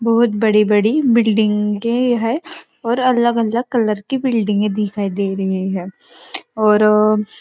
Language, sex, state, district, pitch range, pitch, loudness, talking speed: Hindi, female, Maharashtra, Nagpur, 210-240 Hz, 220 Hz, -16 LUFS, 145 wpm